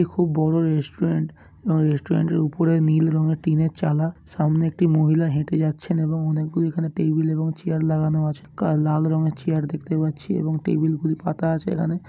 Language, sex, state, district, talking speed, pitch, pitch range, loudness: Bengali, male, West Bengal, Malda, 185 wpm, 160 Hz, 155-165 Hz, -22 LUFS